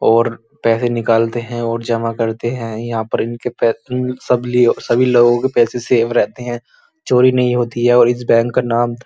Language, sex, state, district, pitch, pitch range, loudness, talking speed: Hindi, male, Uttar Pradesh, Muzaffarnagar, 120 Hz, 115-125 Hz, -16 LUFS, 210 wpm